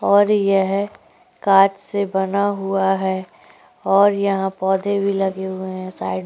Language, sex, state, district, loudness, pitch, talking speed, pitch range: Hindi, female, Uttar Pradesh, Jyotiba Phule Nagar, -19 LUFS, 195 Hz, 155 wpm, 190-200 Hz